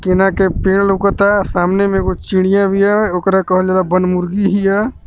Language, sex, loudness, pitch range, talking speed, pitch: Bhojpuri, male, -14 LUFS, 185-200 Hz, 180 wpm, 195 Hz